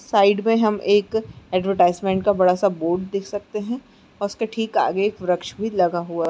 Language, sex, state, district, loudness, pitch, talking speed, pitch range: Hindi, female, Bihar, Araria, -21 LUFS, 200 Hz, 200 wpm, 185-215 Hz